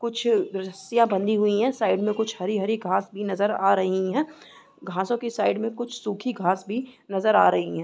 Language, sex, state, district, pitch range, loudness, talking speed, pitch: Hindi, female, Uttarakhand, Tehri Garhwal, 195-235 Hz, -24 LUFS, 200 wpm, 210 Hz